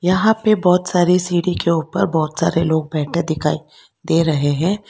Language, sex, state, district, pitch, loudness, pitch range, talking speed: Hindi, female, Karnataka, Bangalore, 170 Hz, -17 LUFS, 160-180 Hz, 185 wpm